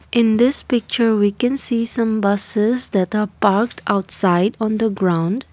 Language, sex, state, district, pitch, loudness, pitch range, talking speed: English, female, Assam, Kamrup Metropolitan, 220 Hz, -18 LUFS, 200-235 Hz, 160 wpm